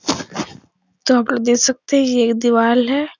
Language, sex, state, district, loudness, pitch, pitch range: Hindi, female, Uttar Pradesh, Etah, -16 LUFS, 245 Hz, 240-265 Hz